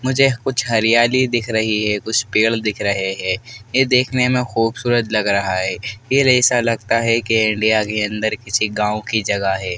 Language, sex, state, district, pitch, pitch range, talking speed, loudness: Hindi, male, Madhya Pradesh, Dhar, 110 Hz, 105-120 Hz, 190 wpm, -17 LUFS